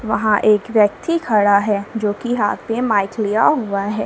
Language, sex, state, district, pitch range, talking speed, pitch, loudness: Hindi, female, Jharkhand, Palamu, 205-225 Hz, 190 wpm, 215 Hz, -17 LUFS